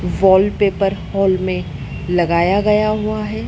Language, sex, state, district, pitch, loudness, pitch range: Hindi, female, Madhya Pradesh, Dhar, 195 Hz, -16 LUFS, 180-210 Hz